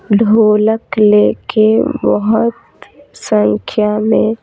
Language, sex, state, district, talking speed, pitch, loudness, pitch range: Hindi, female, Bihar, Patna, 80 wpm, 215 Hz, -12 LUFS, 210-220 Hz